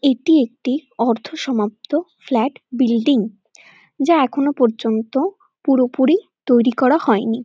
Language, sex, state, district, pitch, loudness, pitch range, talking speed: Bengali, female, West Bengal, North 24 Parganas, 255 Hz, -18 LUFS, 230-290 Hz, 105 wpm